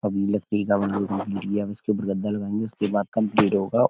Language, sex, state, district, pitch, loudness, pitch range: Hindi, male, Uttar Pradesh, Etah, 100 Hz, -25 LUFS, 100-105 Hz